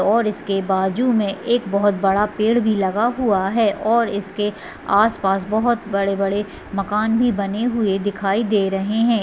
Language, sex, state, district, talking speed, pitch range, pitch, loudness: Hindi, female, Bihar, Madhepura, 180 wpm, 195-225 Hz, 205 Hz, -19 LUFS